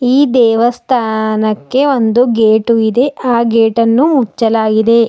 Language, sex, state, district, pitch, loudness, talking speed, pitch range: Kannada, female, Karnataka, Bidar, 230 Hz, -11 LUFS, 105 wpm, 225-250 Hz